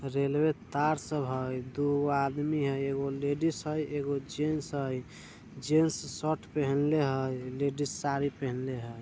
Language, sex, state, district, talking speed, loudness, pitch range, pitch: Bajjika, male, Bihar, Vaishali, 140 wpm, -31 LUFS, 135-150 Hz, 140 Hz